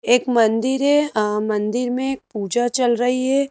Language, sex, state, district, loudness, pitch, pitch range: Hindi, female, Madhya Pradesh, Bhopal, -19 LUFS, 245 Hz, 225-260 Hz